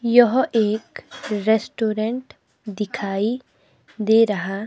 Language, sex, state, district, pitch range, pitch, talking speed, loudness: Hindi, female, Himachal Pradesh, Shimla, 210-235 Hz, 220 Hz, 75 wpm, -21 LUFS